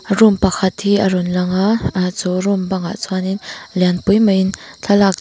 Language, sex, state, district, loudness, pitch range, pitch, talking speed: Mizo, female, Mizoram, Aizawl, -16 LUFS, 185-200 Hz, 190 Hz, 205 wpm